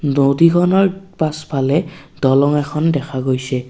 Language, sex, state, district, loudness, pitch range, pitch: Assamese, male, Assam, Kamrup Metropolitan, -16 LUFS, 135-165 Hz, 145 Hz